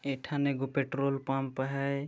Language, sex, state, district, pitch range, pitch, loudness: Chhattisgarhi, male, Chhattisgarh, Jashpur, 135-140 Hz, 140 Hz, -32 LUFS